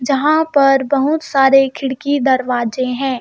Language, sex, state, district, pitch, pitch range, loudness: Hindi, female, Madhya Pradesh, Bhopal, 270 Hz, 260-285 Hz, -15 LUFS